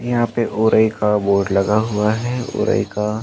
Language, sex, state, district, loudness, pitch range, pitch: Hindi, male, Uttar Pradesh, Jalaun, -18 LUFS, 105-115 Hz, 110 Hz